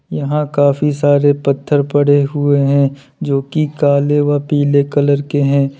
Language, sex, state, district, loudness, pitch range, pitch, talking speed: Hindi, male, Uttar Pradesh, Lalitpur, -14 LUFS, 140-145 Hz, 145 Hz, 155 wpm